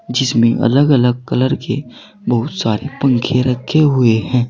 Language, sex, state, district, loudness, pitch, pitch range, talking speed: Hindi, male, Uttar Pradesh, Saharanpur, -15 LUFS, 125 Hz, 120-135 Hz, 145 wpm